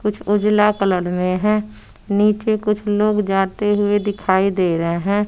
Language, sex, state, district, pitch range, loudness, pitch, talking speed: Hindi, female, Bihar, West Champaran, 190-210 Hz, -18 LUFS, 205 Hz, 160 wpm